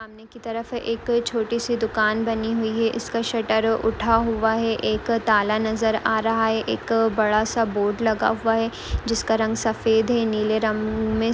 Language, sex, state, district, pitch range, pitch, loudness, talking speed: Hindi, female, West Bengal, Paschim Medinipur, 220-230 Hz, 225 Hz, -22 LUFS, 185 wpm